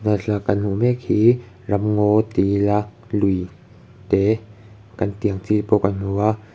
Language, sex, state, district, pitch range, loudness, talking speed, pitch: Mizo, male, Mizoram, Aizawl, 100-110 Hz, -20 LUFS, 190 wpm, 105 Hz